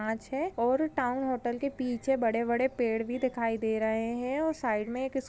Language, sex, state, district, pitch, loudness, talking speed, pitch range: Hindi, female, Chhattisgarh, Raigarh, 245 Hz, -30 LUFS, 215 wpm, 230-265 Hz